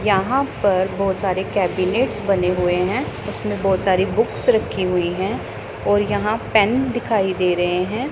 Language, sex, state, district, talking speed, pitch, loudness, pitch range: Hindi, female, Punjab, Pathankot, 165 wpm, 195 Hz, -20 LUFS, 185-215 Hz